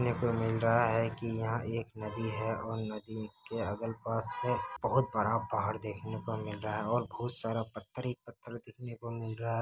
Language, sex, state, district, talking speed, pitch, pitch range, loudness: Hindi, male, Bihar, Kishanganj, 205 wpm, 115 Hz, 110-120 Hz, -35 LUFS